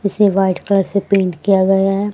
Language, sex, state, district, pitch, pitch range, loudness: Hindi, female, Haryana, Rohtak, 195 Hz, 190-200 Hz, -15 LUFS